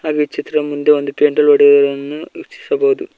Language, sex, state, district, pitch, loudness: Kannada, male, Karnataka, Koppal, 150 Hz, -14 LUFS